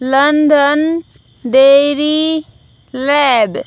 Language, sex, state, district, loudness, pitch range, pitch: Hindi, female, Haryana, Jhajjar, -12 LUFS, 275-310 Hz, 290 Hz